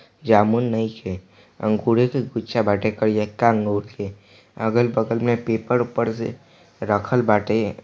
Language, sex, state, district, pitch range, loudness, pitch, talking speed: Bhojpuri, male, Bihar, East Champaran, 105-115 Hz, -21 LUFS, 110 Hz, 115 wpm